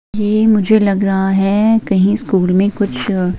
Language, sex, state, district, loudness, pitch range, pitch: Hindi, female, Himachal Pradesh, Shimla, -14 LUFS, 195-215 Hz, 200 Hz